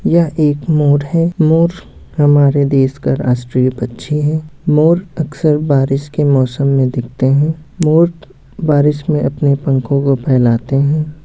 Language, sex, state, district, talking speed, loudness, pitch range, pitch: Hindi, male, Bihar, Muzaffarpur, 145 wpm, -14 LUFS, 135-155 Hz, 145 Hz